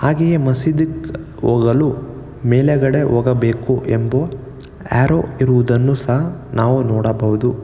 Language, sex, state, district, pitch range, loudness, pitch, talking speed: Kannada, male, Karnataka, Bangalore, 120-140 Hz, -16 LUFS, 130 Hz, 85 wpm